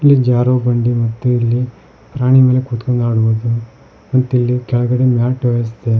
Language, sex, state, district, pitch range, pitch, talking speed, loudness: Kannada, male, Karnataka, Koppal, 120-125 Hz, 120 Hz, 140 wpm, -15 LUFS